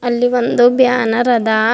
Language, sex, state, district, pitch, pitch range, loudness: Kannada, female, Karnataka, Bidar, 240 Hz, 230-245 Hz, -13 LUFS